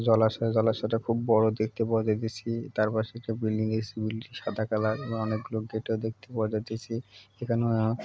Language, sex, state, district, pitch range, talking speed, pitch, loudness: Bengali, male, West Bengal, Purulia, 110-115 Hz, 165 wpm, 110 Hz, -29 LUFS